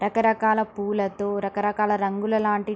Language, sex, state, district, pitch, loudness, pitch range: Telugu, female, Andhra Pradesh, Srikakulam, 205 Hz, -24 LUFS, 205-215 Hz